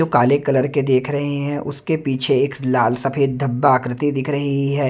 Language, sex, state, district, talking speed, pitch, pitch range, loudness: Hindi, male, Maharashtra, Mumbai Suburban, 210 wpm, 140 Hz, 130-145 Hz, -19 LUFS